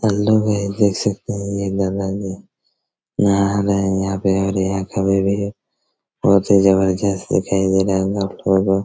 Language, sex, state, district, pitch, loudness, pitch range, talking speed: Hindi, male, Chhattisgarh, Raigarh, 100 Hz, -18 LUFS, 95-100 Hz, 110 wpm